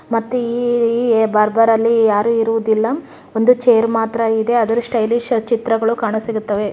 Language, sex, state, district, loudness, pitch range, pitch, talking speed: Kannada, female, Karnataka, Chamarajanagar, -16 LUFS, 220-235 Hz, 230 Hz, 135 wpm